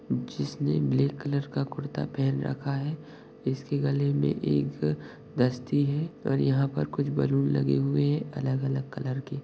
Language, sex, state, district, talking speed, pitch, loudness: Hindi, male, Maharashtra, Sindhudurg, 160 wpm, 130 Hz, -28 LUFS